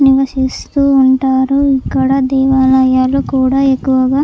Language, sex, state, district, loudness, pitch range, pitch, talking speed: Telugu, female, Andhra Pradesh, Chittoor, -12 LUFS, 260-270 Hz, 265 Hz, 100 wpm